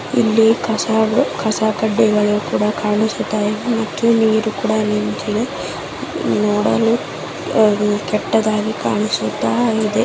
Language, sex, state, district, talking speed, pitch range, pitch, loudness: Kannada, male, Karnataka, Bijapur, 55 wpm, 210-225 Hz, 215 Hz, -17 LUFS